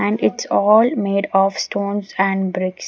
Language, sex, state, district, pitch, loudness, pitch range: English, female, Maharashtra, Gondia, 195 Hz, -18 LUFS, 185-200 Hz